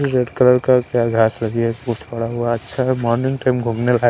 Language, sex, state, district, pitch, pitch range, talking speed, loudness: Hindi, male, Maharashtra, Washim, 120 Hz, 115-125 Hz, 175 wpm, -18 LUFS